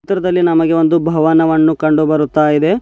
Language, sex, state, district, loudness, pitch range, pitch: Kannada, male, Karnataka, Bidar, -13 LUFS, 155-165 Hz, 160 Hz